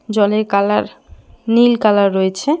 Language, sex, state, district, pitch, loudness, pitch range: Bengali, female, West Bengal, Cooch Behar, 215 Hz, -15 LUFS, 200-230 Hz